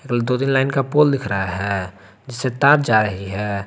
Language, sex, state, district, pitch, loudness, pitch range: Hindi, male, Jharkhand, Garhwa, 120 Hz, -19 LUFS, 100-135 Hz